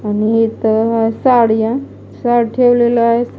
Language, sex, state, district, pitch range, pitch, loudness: Marathi, female, Maharashtra, Mumbai Suburban, 225-240 Hz, 230 Hz, -14 LUFS